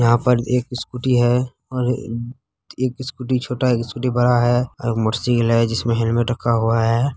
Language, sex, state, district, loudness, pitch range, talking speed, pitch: Hindi, male, Bihar, Kishanganj, -19 LUFS, 115-125 Hz, 190 wpm, 120 Hz